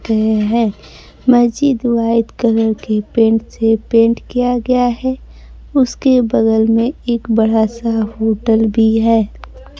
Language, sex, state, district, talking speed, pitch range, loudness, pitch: Hindi, female, Bihar, Kaimur, 130 wpm, 220-240 Hz, -14 LUFS, 230 Hz